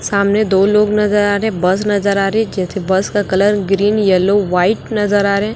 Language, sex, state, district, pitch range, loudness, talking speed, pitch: Hindi, male, Chhattisgarh, Raipur, 195-210 Hz, -14 LUFS, 235 wpm, 200 Hz